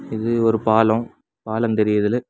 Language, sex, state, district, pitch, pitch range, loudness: Tamil, male, Tamil Nadu, Kanyakumari, 110 Hz, 110-115 Hz, -19 LUFS